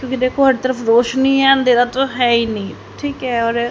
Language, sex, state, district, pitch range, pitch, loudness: Hindi, female, Haryana, Charkhi Dadri, 235-265 Hz, 255 Hz, -15 LUFS